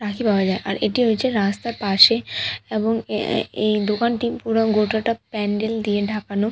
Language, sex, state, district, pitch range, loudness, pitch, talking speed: Bengali, female, West Bengal, Purulia, 205-225 Hz, -20 LUFS, 215 Hz, 165 wpm